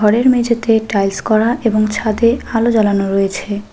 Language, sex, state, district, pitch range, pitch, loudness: Bengali, female, West Bengal, Alipurduar, 205-230 Hz, 220 Hz, -15 LUFS